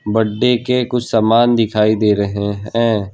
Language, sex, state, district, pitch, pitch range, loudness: Hindi, male, Gujarat, Valsad, 110 Hz, 105-120 Hz, -15 LUFS